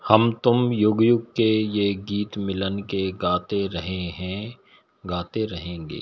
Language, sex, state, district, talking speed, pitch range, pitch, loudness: Hindi, male, Bihar, Patna, 140 wpm, 95-110 Hz, 100 Hz, -23 LUFS